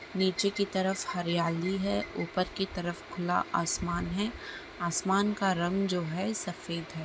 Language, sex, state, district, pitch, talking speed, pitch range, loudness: Hindi, male, Bihar, Bhagalpur, 180 Hz, 155 wpm, 175-195 Hz, -31 LUFS